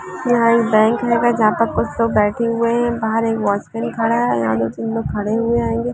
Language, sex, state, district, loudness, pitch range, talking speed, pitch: Hindi, female, Bihar, Gopalganj, -17 LUFS, 215-235 Hz, 250 wpm, 230 Hz